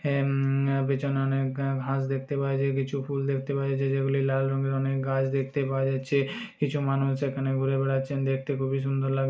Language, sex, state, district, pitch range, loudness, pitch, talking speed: Bajjika, male, Bihar, Vaishali, 135-140 Hz, -27 LUFS, 135 Hz, 185 wpm